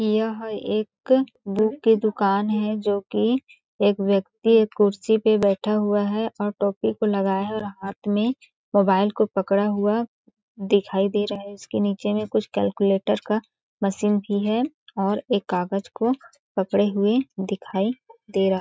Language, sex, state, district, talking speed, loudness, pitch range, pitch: Hindi, female, Chhattisgarh, Balrampur, 165 wpm, -23 LUFS, 200-220 Hz, 205 Hz